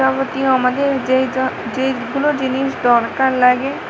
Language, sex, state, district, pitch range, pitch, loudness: Bengali, female, Tripura, West Tripura, 255-270 Hz, 260 Hz, -17 LUFS